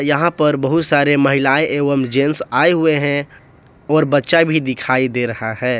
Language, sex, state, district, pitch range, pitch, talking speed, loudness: Hindi, male, Jharkhand, Ranchi, 130-155 Hz, 140 Hz, 175 wpm, -15 LUFS